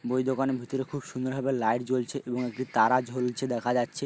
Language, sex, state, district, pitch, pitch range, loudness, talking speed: Bengali, male, West Bengal, Paschim Medinipur, 130 Hz, 125-135 Hz, -29 LUFS, 205 wpm